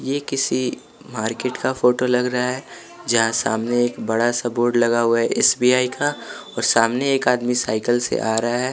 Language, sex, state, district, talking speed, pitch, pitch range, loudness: Hindi, male, Bihar, West Champaran, 190 wpm, 120 Hz, 115-125 Hz, -20 LUFS